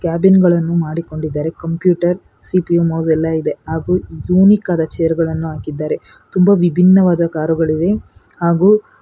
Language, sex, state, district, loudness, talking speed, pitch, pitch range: Kannada, female, Karnataka, Bangalore, -15 LUFS, 125 wpm, 170 Hz, 160-180 Hz